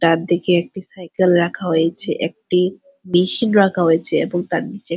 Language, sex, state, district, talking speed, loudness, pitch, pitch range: Bengali, female, West Bengal, Purulia, 155 wpm, -18 LUFS, 180 Hz, 170-190 Hz